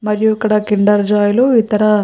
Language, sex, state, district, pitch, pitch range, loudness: Telugu, female, Andhra Pradesh, Chittoor, 210 Hz, 210-220 Hz, -13 LUFS